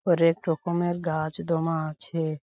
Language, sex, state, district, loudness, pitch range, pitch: Bengali, male, West Bengal, Paschim Medinipur, -27 LUFS, 155-170 Hz, 165 Hz